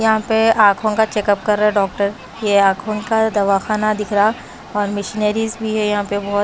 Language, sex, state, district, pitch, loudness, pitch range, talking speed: Hindi, female, Punjab, Pathankot, 210 Hz, -17 LUFS, 205-220 Hz, 205 wpm